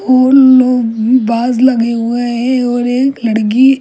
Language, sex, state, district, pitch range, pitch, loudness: Hindi, female, Delhi, New Delhi, 235-255 Hz, 245 Hz, -11 LUFS